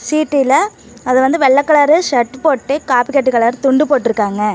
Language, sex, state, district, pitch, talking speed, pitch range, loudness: Tamil, female, Tamil Nadu, Namakkal, 270 Hz, 130 wpm, 245-295 Hz, -13 LUFS